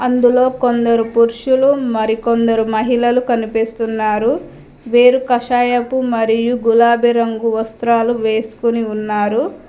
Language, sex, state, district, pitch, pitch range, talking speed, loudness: Telugu, female, Telangana, Mahabubabad, 235 Hz, 225-245 Hz, 85 wpm, -15 LUFS